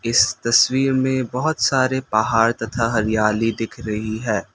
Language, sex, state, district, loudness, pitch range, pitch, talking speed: Hindi, male, Assam, Kamrup Metropolitan, -19 LUFS, 110-130 Hz, 115 Hz, 145 wpm